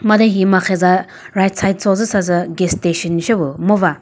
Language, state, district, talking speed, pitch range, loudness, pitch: Chakhesang, Nagaland, Dimapur, 195 wpm, 175-200 Hz, -15 LUFS, 185 Hz